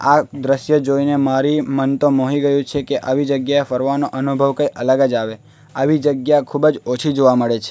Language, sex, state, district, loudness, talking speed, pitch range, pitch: Gujarati, male, Gujarat, Valsad, -17 LUFS, 200 wpm, 130-145 Hz, 140 Hz